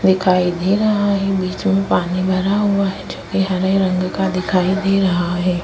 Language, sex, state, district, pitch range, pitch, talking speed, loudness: Hindi, female, Goa, North and South Goa, 180-195 Hz, 185 Hz, 200 wpm, -17 LUFS